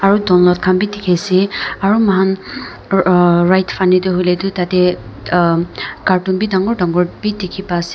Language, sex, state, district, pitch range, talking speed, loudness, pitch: Nagamese, female, Nagaland, Dimapur, 180-195 Hz, 150 wpm, -14 LUFS, 185 Hz